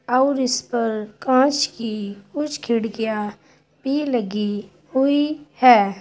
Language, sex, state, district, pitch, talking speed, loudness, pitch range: Hindi, female, Uttar Pradesh, Saharanpur, 235 Hz, 110 wpm, -21 LUFS, 210-270 Hz